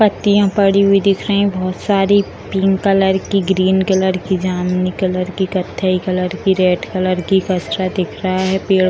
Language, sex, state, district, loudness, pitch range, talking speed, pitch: Hindi, female, Bihar, Purnia, -16 LUFS, 185-195 Hz, 195 wpm, 190 Hz